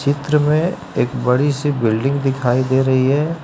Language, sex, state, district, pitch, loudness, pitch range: Hindi, male, Uttar Pradesh, Lucknow, 140 Hz, -17 LUFS, 130-145 Hz